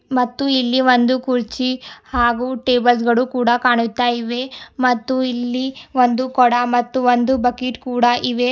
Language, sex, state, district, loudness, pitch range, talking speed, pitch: Kannada, female, Karnataka, Bidar, -17 LUFS, 245-255 Hz, 125 wpm, 250 Hz